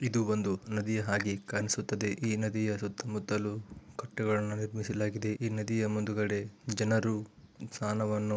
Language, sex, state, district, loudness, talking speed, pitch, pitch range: Kannada, male, Karnataka, Raichur, -33 LUFS, 115 wpm, 105 Hz, 105-110 Hz